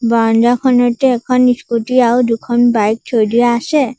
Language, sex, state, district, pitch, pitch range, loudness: Assamese, female, Assam, Sonitpur, 240 Hz, 230-250 Hz, -13 LUFS